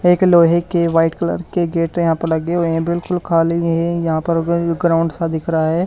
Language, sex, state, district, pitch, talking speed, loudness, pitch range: Hindi, male, Haryana, Charkhi Dadri, 170 Hz, 235 wpm, -17 LUFS, 165-170 Hz